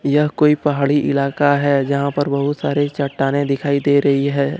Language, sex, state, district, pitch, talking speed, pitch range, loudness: Hindi, male, Jharkhand, Deoghar, 140 Hz, 185 wpm, 140-145 Hz, -17 LUFS